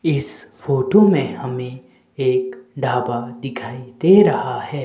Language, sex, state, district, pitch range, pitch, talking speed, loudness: Hindi, male, Himachal Pradesh, Shimla, 125-150 Hz, 130 Hz, 125 wpm, -18 LUFS